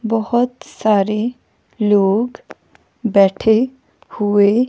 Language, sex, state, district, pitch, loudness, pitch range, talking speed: Hindi, female, Himachal Pradesh, Shimla, 220 Hz, -17 LUFS, 205-240 Hz, 65 wpm